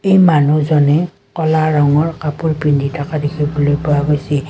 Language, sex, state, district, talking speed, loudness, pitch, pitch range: Assamese, female, Assam, Kamrup Metropolitan, 135 wpm, -15 LUFS, 150 Hz, 145-155 Hz